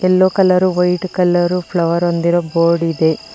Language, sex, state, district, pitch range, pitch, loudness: Kannada, female, Karnataka, Bangalore, 170-185 Hz, 175 Hz, -15 LUFS